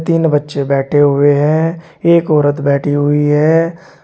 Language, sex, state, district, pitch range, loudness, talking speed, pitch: Hindi, male, Uttar Pradesh, Shamli, 145-165 Hz, -13 LUFS, 150 wpm, 150 Hz